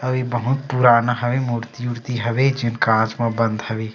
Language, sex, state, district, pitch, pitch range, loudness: Chhattisgarhi, male, Chhattisgarh, Sarguja, 120 Hz, 115-125 Hz, -20 LUFS